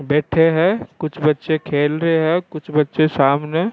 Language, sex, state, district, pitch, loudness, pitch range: Rajasthani, male, Rajasthan, Churu, 155 Hz, -18 LUFS, 150-165 Hz